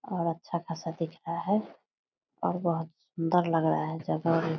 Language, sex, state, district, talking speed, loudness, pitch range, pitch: Hindi, female, Bihar, Purnia, 195 wpm, -30 LUFS, 165-175 Hz, 165 Hz